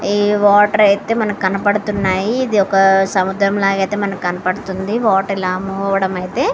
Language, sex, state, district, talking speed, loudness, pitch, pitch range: Telugu, female, Andhra Pradesh, Srikakulam, 110 wpm, -15 LUFS, 195 Hz, 190-205 Hz